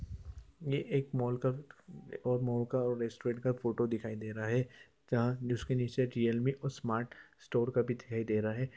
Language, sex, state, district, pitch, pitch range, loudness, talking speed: Hindi, male, Bihar, Jamui, 120 Hz, 115-125 Hz, -35 LUFS, 190 wpm